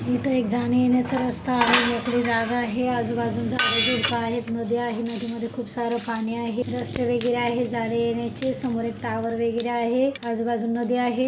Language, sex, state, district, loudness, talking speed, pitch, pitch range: Marathi, female, Maharashtra, Dhule, -24 LUFS, 195 wpm, 235 Hz, 230-245 Hz